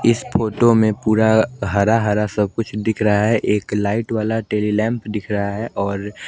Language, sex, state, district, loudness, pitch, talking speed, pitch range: Hindi, male, Chandigarh, Chandigarh, -18 LUFS, 110 Hz, 180 wpm, 105-115 Hz